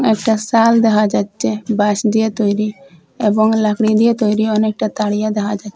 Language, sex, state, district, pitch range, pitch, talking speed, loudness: Bengali, female, Assam, Hailakandi, 210-220 Hz, 215 Hz, 155 wpm, -15 LUFS